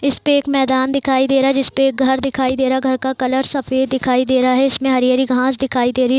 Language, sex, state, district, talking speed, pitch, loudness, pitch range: Hindi, female, Bihar, Sitamarhi, 280 wpm, 265 Hz, -16 LUFS, 260-270 Hz